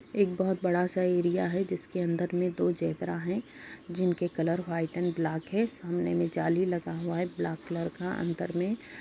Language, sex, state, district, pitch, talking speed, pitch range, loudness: Hindi, female, Uttar Pradesh, Budaun, 175 Hz, 200 wpm, 170-185 Hz, -30 LUFS